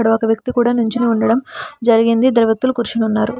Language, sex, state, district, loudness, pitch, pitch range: Telugu, female, Telangana, Hyderabad, -15 LUFS, 230 Hz, 225-245 Hz